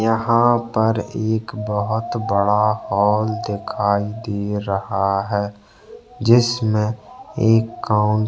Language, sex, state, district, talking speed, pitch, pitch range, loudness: Hindi, male, Chhattisgarh, Bastar, 100 wpm, 110 Hz, 105-115 Hz, -19 LUFS